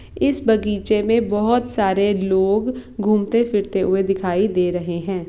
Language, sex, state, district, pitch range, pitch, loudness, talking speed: Hindi, female, Bihar, Saran, 190-225 Hz, 205 Hz, -19 LUFS, 150 wpm